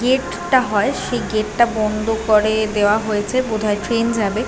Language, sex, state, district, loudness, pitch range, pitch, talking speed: Bengali, female, West Bengal, Jhargram, -18 LUFS, 210-235 Hz, 220 Hz, 200 wpm